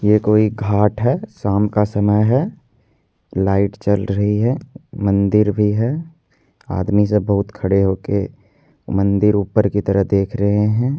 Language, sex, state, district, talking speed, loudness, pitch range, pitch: Hindi, male, Bihar, Purnia, 145 wpm, -17 LUFS, 100-115 Hz, 105 Hz